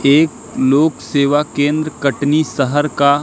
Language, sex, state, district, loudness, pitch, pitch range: Hindi, male, Madhya Pradesh, Katni, -15 LUFS, 145 Hz, 140-150 Hz